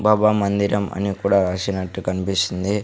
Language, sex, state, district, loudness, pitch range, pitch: Telugu, male, Andhra Pradesh, Sri Satya Sai, -20 LUFS, 95-100 Hz, 100 Hz